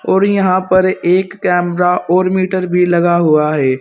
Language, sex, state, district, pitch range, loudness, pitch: Hindi, male, Uttar Pradesh, Saharanpur, 175-185 Hz, -13 LUFS, 180 Hz